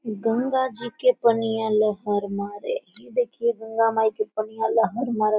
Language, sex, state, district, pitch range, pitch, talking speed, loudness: Hindi, female, Jharkhand, Sahebganj, 215-240 Hz, 225 Hz, 155 wpm, -24 LUFS